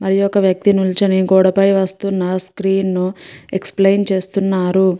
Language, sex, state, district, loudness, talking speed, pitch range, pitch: Telugu, female, Andhra Pradesh, Guntur, -16 LUFS, 130 wpm, 185-195 Hz, 190 Hz